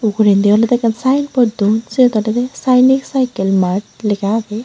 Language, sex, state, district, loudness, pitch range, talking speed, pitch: Chakma, female, Tripura, Unakoti, -14 LUFS, 210-255 Hz, 170 wpm, 225 Hz